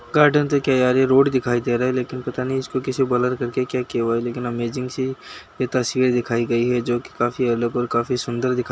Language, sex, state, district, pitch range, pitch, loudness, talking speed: Hindi, male, Bihar, Bhagalpur, 120-130 Hz, 125 Hz, -21 LUFS, 255 wpm